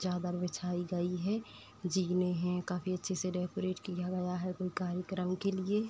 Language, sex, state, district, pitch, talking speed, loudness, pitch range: Hindi, female, Uttar Pradesh, Etah, 180 Hz, 175 wpm, -36 LUFS, 180-185 Hz